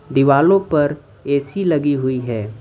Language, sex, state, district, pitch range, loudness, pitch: Hindi, male, Jharkhand, Ranchi, 130-150 Hz, -17 LUFS, 140 Hz